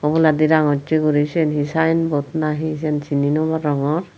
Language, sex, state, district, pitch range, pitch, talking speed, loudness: Chakma, female, Tripura, Unakoti, 145-160 Hz, 155 Hz, 160 wpm, -19 LUFS